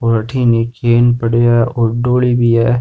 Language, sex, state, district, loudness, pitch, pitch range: Rajasthani, male, Rajasthan, Nagaur, -13 LUFS, 120 Hz, 115-120 Hz